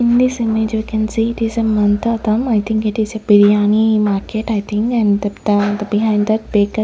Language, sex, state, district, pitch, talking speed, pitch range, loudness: English, female, Chandigarh, Chandigarh, 215 Hz, 220 wpm, 210-225 Hz, -16 LUFS